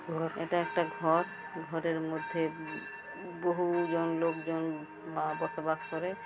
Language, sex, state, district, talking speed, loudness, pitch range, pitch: Bengali, female, West Bengal, Jhargram, 85 wpm, -34 LUFS, 160-175 Hz, 165 Hz